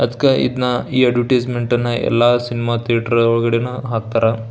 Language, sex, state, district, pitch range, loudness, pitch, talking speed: Kannada, male, Karnataka, Belgaum, 115-125 Hz, -17 LUFS, 120 Hz, 135 wpm